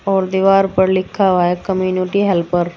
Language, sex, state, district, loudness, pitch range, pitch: Hindi, female, Uttar Pradesh, Saharanpur, -15 LUFS, 180-195 Hz, 190 Hz